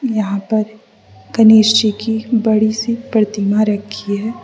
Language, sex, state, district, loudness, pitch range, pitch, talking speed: Hindi, female, Mizoram, Aizawl, -15 LUFS, 205-220 Hz, 215 Hz, 135 wpm